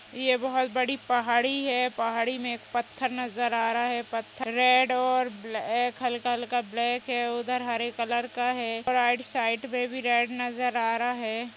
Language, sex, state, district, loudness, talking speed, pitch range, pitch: Hindi, female, Uttar Pradesh, Jalaun, -27 LUFS, 190 wpm, 235-250 Hz, 245 Hz